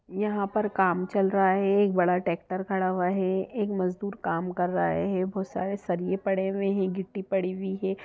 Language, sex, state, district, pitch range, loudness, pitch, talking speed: Hindi, female, Bihar, Sitamarhi, 185-195 Hz, -27 LUFS, 190 Hz, 210 wpm